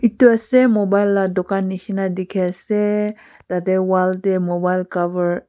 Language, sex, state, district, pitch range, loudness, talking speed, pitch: Nagamese, female, Nagaland, Kohima, 185-210 Hz, -18 LUFS, 155 wpm, 190 Hz